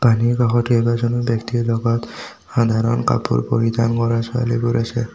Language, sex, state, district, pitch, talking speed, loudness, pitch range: Assamese, male, Assam, Kamrup Metropolitan, 115 Hz, 130 wpm, -19 LUFS, 115-120 Hz